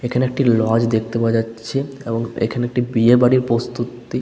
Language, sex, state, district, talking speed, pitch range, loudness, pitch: Bengali, male, West Bengal, Paschim Medinipur, 170 wpm, 115-125 Hz, -18 LUFS, 120 Hz